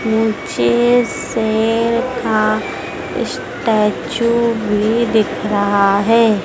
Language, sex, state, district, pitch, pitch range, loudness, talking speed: Hindi, female, Madhya Pradesh, Dhar, 220 Hz, 210-235 Hz, -16 LUFS, 75 wpm